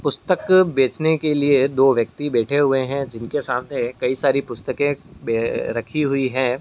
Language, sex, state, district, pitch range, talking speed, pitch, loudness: Hindi, male, Uttar Pradesh, Muzaffarnagar, 125-145 Hz, 165 wpm, 135 Hz, -20 LUFS